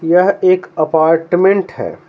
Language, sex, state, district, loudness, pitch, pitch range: Hindi, male, Bihar, Patna, -13 LUFS, 180 Hz, 165-185 Hz